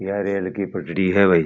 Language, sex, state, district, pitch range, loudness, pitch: Marwari, male, Rajasthan, Churu, 95-100 Hz, -21 LUFS, 100 Hz